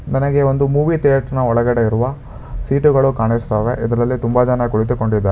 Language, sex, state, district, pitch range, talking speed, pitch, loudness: Kannada, male, Karnataka, Bangalore, 115-135 Hz, 170 wpm, 125 Hz, -16 LUFS